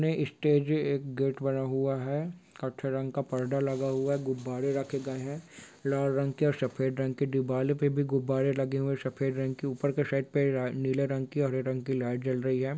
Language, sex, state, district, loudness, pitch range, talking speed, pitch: Hindi, male, Bihar, Sitamarhi, -30 LUFS, 130-140 Hz, 230 wpm, 135 Hz